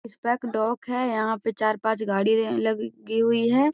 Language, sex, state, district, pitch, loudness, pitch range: Magahi, female, Bihar, Gaya, 225 Hz, -25 LUFS, 215-235 Hz